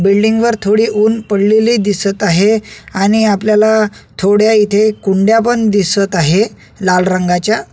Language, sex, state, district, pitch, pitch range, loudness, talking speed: Marathi, male, Maharashtra, Solapur, 210 Hz, 195-220 Hz, -12 LUFS, 125 wpm